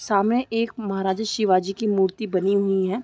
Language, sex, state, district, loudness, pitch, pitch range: Hindi, female, Uttar Pradesh, Deoria, -22 LUFS, 200 Hz, 190-220 Hz